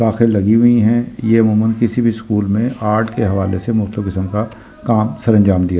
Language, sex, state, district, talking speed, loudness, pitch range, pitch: Hindi, male, Delhi, New Delhi, 125 wpm, -15 LUFS, 105-115 Hz, 110 Hz